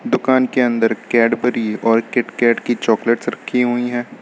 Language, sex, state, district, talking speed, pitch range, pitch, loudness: Hindi, male, Uttar Pradesh, Lucknow, 155 wpm, 115-125 Hz, 120 Hz, -17 LUFS